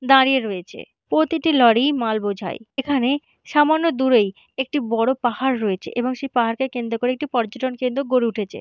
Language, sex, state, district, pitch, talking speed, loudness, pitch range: Bengali, female, West Bengal, Purulia, 255 Hz, 160 wpm, -20 LUFS, 230-270 Hz